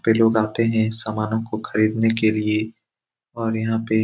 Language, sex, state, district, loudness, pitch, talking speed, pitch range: Hindi, male, Bihar, Saran, -21 LUFS, 110 Hz, 205 wpm, 110-115 Hz